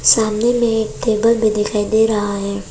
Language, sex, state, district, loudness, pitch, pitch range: Hindi, female, Arunachal Pradesh, Papum Pare, -16 LUFS, 220 Hz, 210-225 Hz